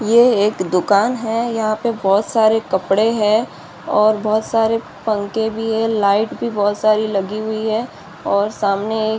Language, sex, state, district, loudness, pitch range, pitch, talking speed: Hindi, female, Bihar, Madhepura, -17 LUFS, 205-225 Hz, 220 Hz, 185 wpm